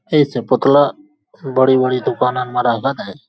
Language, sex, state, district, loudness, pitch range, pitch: Hindi, male, Uttar Pradesh, Hamirpur, -16 LUFS, 125-145 Hz, 130 Hz